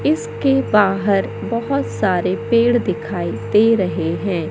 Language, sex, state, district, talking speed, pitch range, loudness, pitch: Hindi, male, Madhya Pradesh, Katni, 120 wpm, 200-240 Hz, -18 LUFS, 230 Hz